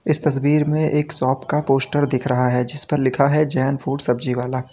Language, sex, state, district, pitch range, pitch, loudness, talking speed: Hindi, male, Uttar Pradesh, Lalitpur, 130-150 Hz, 140 Hz, -19 LUFS, 230 wpm